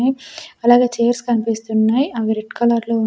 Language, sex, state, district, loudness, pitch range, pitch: Telugu, female, Andhra Pradesh, Sri Satya Sai, -17 LUFS, 225-250 Hz, 235 Hz